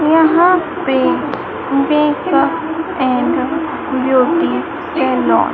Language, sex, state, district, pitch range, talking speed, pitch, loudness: Hindi, female, Madhya Pradesh, Dhar, 275-330 Hz, 75 wpm, 310 Hz, -15 LUFS